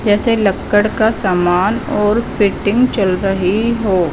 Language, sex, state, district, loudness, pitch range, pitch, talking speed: Hindi, female, Punjab, Fazilka, -15 LUFS, 190-225 Hz, 205 Hz, 130 wpm